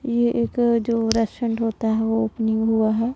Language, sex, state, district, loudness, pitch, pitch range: Hindi, female, Punjab, Pathankot, -21 LUFS, 225 Hz, 225-235 Hz